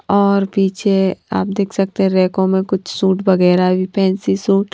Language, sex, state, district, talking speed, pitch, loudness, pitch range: Hindi, female, Punjab, Pathankot, 190 wpm, 190 Hz, -16 LUFS, 190-195 Hz